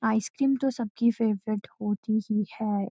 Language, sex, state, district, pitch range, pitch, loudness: Hindi, female, Uttarakhand, Uttarkashi, 210-235 Hz, 220 Hz, -28 LUFS